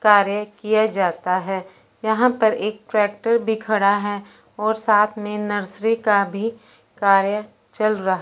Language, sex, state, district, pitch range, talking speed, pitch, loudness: Hindi, male, Punjab, Fazilka, 200-220 Hz, 145 wpm, 210 Hz, -20 LUFS